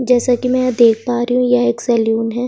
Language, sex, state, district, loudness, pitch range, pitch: Hindi, female, Chhattisgarh, Sukma, -15 LUFS, 235-250 Hz, 245 Hz